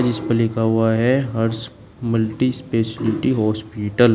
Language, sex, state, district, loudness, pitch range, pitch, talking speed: Hindi, male, Uttar Pradesh, Shamli, -20 LUFS, 110-120 Hz, 115 Hz, 145 wpm